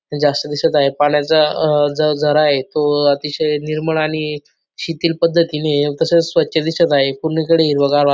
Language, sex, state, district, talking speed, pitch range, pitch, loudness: Marathi, male, Maharashtra, Dhule, 160 wpm, 145-160 Hz, 150 Hz, -16 LUFS